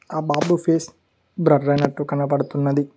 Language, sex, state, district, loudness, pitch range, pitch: Telugu, male, Telangana, Mahabubabad, -20 LUFS, 145-160 Hz, 145 Hz